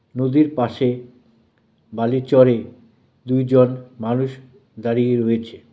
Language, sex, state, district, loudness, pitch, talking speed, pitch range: Bengali, male, West Bengal, Cooch Behar, -19 LUFS, 125 Hz, 85 wpm, 115-130 Hz